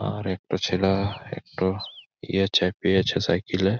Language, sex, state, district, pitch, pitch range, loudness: Bengali, male, West Bengal, Malda, 95 Hz, 95-100 Hz, -24 LUFS